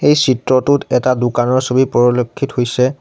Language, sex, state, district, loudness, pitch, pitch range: Assamese, male, Assam, Sonitpur, -14 LUFS, 130 Hz, 125-130 Hz